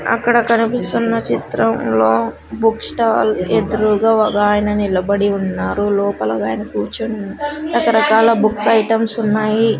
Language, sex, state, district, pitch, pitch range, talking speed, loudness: Telugu, female, Andhra Pradesh, Sri Satya Sai, 215 Hz, 200-225 Hz, 110 wpm, -16 LUFS